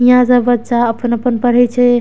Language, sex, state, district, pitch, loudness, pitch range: Maithili, female, Bihar, Darbhanga, 245 Hz, -13 LUFS, 240-245 Hz